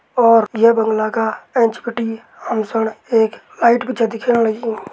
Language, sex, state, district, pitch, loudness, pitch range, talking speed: Garhwali, male, Uttarakhand, Tehri Garhwal, 225 Hz, -17 LUFS, 220-235 Hz, 170 wpm